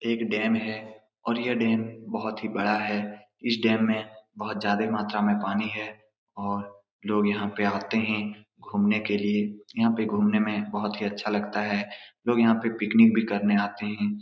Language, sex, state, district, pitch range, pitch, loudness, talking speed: Hindi, male, Bihar, Saran, 105-110 Hz, 105 Hz, -26 LUFS, 190 wpm